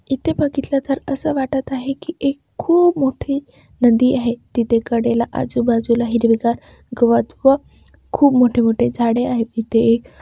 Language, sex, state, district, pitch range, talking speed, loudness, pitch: Marathi, female, Maharashtra, Chandrapur, 235-275 Hz, 145 wpm, -17 LUFS, 245 Hz